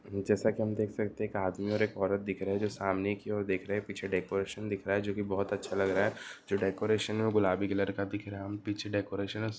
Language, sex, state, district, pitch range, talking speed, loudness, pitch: Marwari, male, Rajasthan, Nagaur, 100-105 Hz, 280 wpm, -33 LUFS, 100 Hz